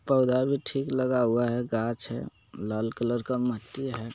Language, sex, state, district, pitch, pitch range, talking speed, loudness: Magahi, male, Bihar, Jamui, 120 Hz, 115-130 Hz, 190 wpm, -28 LUFS